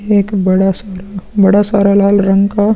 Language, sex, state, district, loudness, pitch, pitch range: Hindi, male, Bihar, Vaishali, -12 LUFS, 200 Hz, 195-205 Hz